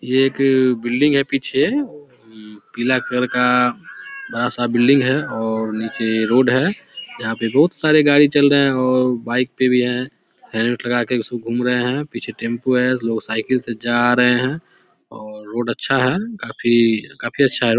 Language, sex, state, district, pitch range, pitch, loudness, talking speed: Hindi, male, Bihar, Samastipur, 120-135 Hz, 125 Hz, -18 LUFS, 175 wpm